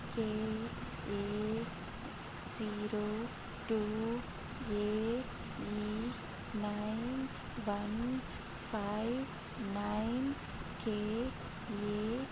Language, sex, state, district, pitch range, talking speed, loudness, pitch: Kannada, female, Karnataka, Chamarajanagar, 210-230 Hz, 45 wpm, -39 LUFS, 215 Hz